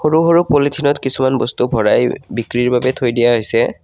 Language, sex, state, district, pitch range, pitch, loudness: Assamese, male, Assam, Kamrup Metropolitan, 120-145 Hz, 130 Hz, -15 LUFS